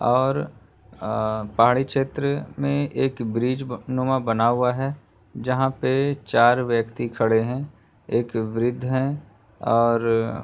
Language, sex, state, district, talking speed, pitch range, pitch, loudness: Hindi, male, Uttar Pradesh, Hamirpur, 125 wpm, 115-135 Hz, 125 Hz, -23 LUFS